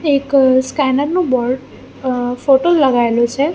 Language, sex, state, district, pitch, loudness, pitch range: Gujarati, female, Gujarat, Gandhinagar, 265 Hz, -15 LUFS, 250-285 Hz